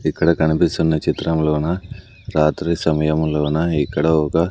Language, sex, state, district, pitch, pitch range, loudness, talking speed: Telugu, male, Andhra Pradesh, Sri Satya Sai, 80 Hz, 75-85 Hz, -18 LUFS, 105 wpm